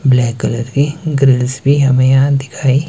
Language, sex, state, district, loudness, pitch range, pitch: Hindi, male, Himachal Pradesh, Shimla, -13 LUFS, 130-140 Hz, 135 Hz